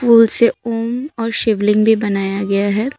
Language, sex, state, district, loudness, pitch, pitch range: Hindi, female, Assam, Kamrup Metropolitan, -15 LUFS, 225 Hz, 210-235 Hz